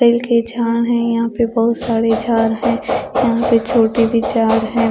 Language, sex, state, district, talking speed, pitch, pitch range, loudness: Hindi, female, Odisha, Khordha, 195 wpm, 230 Hz, 230-235 Hz, -16 LUFS